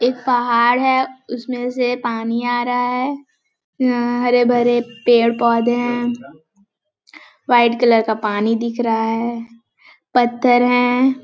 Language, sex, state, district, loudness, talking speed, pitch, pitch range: Hindi, female, Chhattisgarh, Balrampur, -17 LUFS, 130 wpm, 245 Hz, 235-250 Hz